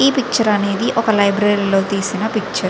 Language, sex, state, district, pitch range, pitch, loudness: Telugu, female, Andhra Pradesh, Visakhapatnam, 200-225 Hz, 210 Hz, -16 LUFS